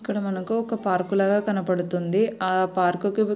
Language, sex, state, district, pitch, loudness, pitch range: Telugu, female, Andhra Pradesh, Srikakulam, 195 Hz, -24 LUFS, 185-210 Hz